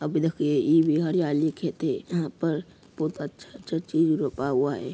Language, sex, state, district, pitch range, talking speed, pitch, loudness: Hindi, male, Bihar, Jamui, 155-165 Hz, 160 wpm, 160 Hz, -26 LUFS